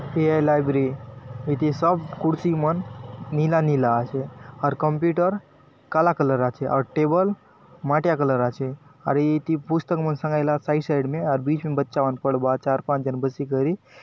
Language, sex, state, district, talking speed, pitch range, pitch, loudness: Halbi, male, Chhattisgarh, Bastar, 175 wpm, 135-160 Hz, 145 Hz, -23 LUFS